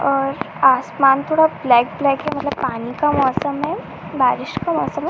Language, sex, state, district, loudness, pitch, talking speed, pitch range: Hindi, female, Uttar Pradesh, Ghazipur, -18 LUFS, 275 Hz, 175 wpm, 265-290 Hz